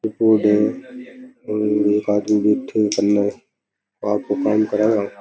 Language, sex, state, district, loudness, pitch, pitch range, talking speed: Rajasthani, male, Rajasthan, Nagaur, -19 LUFS, 105 Hz, 105-110 Hz, 140 wpm